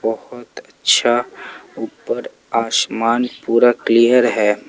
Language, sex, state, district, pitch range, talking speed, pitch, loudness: Hindi, male, Jharkhand, Palamu, 115-120 Hz, 90 wpm, 115 Hz, -16 LUFS